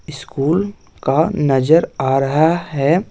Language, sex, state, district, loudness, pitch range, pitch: Hindi, male, Bihar, West Champaran, -16 LUFS, 135-170 Hz, 155 Hz